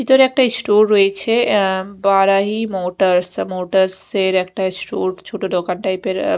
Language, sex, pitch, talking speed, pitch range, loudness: Bengali, female, 195 Hz, 150 wpm, 185-210 Hz, -16 LUFS